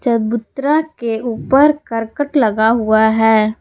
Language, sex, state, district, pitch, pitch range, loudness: Hindi, female, Jharkhand, Palamu, 230 Hz, 220-285 Hz, -15 LUFS